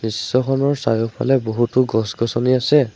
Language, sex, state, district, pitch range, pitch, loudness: Assamese, male, Assam, Sonitpur, 115-130 Hz, 120 Hz, -18 LUFS